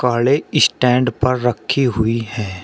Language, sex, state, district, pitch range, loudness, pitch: Hindi, male, Uttar Pradesh, Shamli, 110-130 Hz, -17 LUFS, 125 Hz